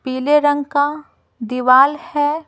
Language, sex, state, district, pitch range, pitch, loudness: Hindi, female, Bihar, Patna, 260-295 Hz, 290 Hz, -16 LUFS